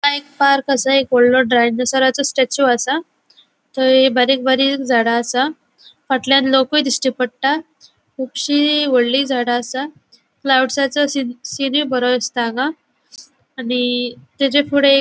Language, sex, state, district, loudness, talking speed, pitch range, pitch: Konkani, female, Goa, North and South Goa, -16 LUFS, 125 wpm, 250-280 Hz, 265 Hz